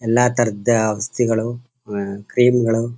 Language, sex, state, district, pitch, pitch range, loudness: Kannada, male, Karnataka, Chamarajanagar, 115 Hz, 110-120 Hz, -19 LUFS